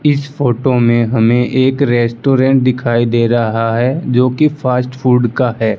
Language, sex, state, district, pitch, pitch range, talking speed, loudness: Hindi, male, Rajasthan, Bikaner, 125 Hz, 120-130 Hz, 155 wpm, -13 LUFS